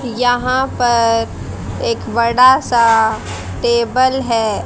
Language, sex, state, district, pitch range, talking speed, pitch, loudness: Hindi, female, Haryana, Rohtak, 230-250 Hz, 90 wpm, 235 Hz, -14 LUFS